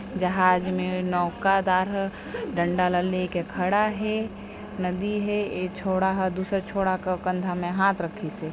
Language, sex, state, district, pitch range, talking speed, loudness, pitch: Chhattisgarhi, female, Chhattisgarh, Sarguja, 180-195 Hz, 155 wpm, -25 LUFS, 185 Hz